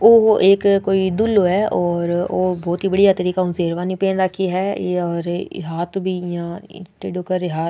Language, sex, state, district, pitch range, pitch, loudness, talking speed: Rajasthani, female, Rajasthan, Nagaur, 175-195 Hz, 185 Hz, -18 LUFS, 165 wpm